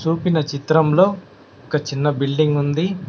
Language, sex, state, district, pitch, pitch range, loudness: Telugu, male, Telangana, Mahabubabad, 155 Hz, 145-165 Hz, -19 LUFS